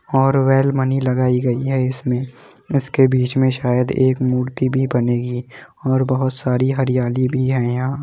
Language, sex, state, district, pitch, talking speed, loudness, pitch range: Hindi, male, Uttar Pradesh, Muzaffarnagar, 130 Hz, 150 wpm, -18 LUFS, 125-130 Hz